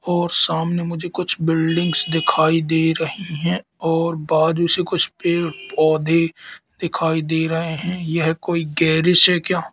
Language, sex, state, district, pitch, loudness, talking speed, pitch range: Hindi, male, Madhya Pradesh, Katni, 165 Hz, -19 LUFS, 150 wpm, 160-175 Hz